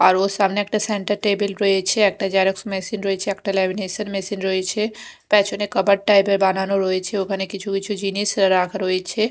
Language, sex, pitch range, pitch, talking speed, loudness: Bengali, female, 190-205 Hz, 195 Hz, 175 wpm, -20 LUFS